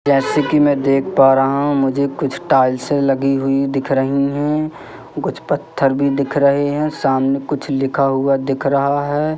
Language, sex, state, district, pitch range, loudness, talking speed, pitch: Hindi, male, Madhya Pradesh, Katni, 135-145 Hz, -16 LUFS, 180 wpm, 140 Hz